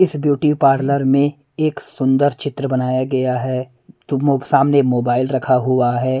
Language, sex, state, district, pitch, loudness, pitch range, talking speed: Hindi, male, Punjab, Pathankot, 135 Hz, -17 LUFS, 130-145 Hz, 145 wpm